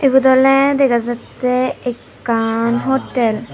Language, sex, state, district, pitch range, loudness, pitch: Chakma, female, Tripura, Unakoti, 235-265 Hz, -16 LUFS, 250 Hz